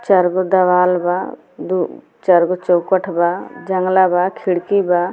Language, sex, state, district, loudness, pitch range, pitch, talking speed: Bhojpuri, female, Bihar, Muzaffarpur, -16 LUFS, 175-190 Hz, 180 Hz, 150 wpm